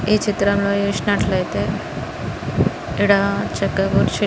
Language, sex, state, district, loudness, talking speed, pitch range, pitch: Telugu, female, Andhra Pradesh, Srikakulam, -20 LUFS, 85 wpm, 200-205 Hz, 200 Hz